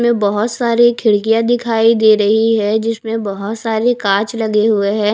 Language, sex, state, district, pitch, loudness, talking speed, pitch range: Hindi, female, Haryana, Rohtak, 220 Hz, -14 LUFS, 165 wpm, 210-230 Hz